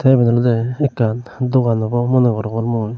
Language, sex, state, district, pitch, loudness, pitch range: Chakma, male, Tripura, Unakoti, 120 Hz, -17 LUFS, 115-125 Hz